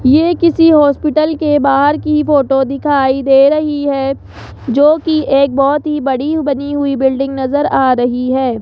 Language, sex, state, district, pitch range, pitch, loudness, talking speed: Hindi, male, Rajasthan, Jaipur, 270-300 Hz, 280 Hz, -12 LUFS, 165 wpm